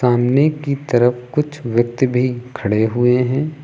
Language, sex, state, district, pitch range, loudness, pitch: Hindi, male, Uttar Pradesh, Lucknow, 120-140 Hz, -17 LUFS, 125 Hz